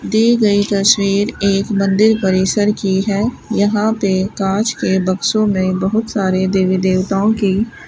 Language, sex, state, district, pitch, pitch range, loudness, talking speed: Hindi, female, Rajasthan, Bikaner, 200 Hz, 190-215 Hz, -15 LUFS, 145 wpm